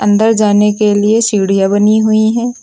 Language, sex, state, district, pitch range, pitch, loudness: Hindi, female, Uttar Pradesh, Lucknow, 205-220 Hz, 210 Hz, -11 LUFS